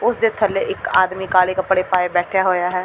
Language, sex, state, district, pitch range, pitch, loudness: Punjabi, female, Delhi, New Delhi, 185-195 Hz, 185 Hz, -18 LUFS